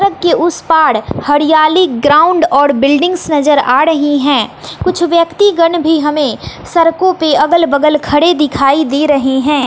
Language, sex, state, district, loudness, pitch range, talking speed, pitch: Hindi, female, Bihar, West Champaran, -10 LUFS, 290-340 Hz, 155 wpm, 310 Hz